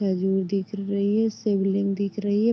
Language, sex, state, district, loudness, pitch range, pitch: Hindi, female, Uttar Pradesh, Deoria, -24 LUFS, 195-205 Hz, 200 Hz